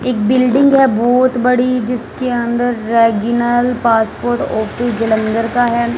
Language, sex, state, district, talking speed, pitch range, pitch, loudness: Hindi, female, Punjab, Fazilka, 130 wpm, 230-250 Hz, 240 Hz, -14 LUFS